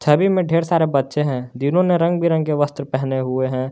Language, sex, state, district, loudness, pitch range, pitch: Hindi, male, Jharkhand, Garhwa, -19 LUFS, 130-170 Hz, 150 Hz